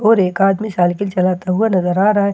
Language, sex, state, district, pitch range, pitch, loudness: Hindi, female, Bihar, Katihar, 185-205 Hz, 195 Hz, -16 LUFS